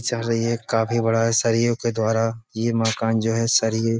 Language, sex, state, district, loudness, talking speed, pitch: Hindi, male, Uttar Pradesh, Budaun, -21 LUFS, 225 wpm, 115 Hz